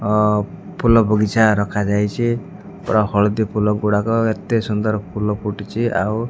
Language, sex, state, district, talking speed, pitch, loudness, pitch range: Odia, male, Odisha, Malkangiri, 135 wpm, 105 Hz, -18 LUFS, 105-115 Hz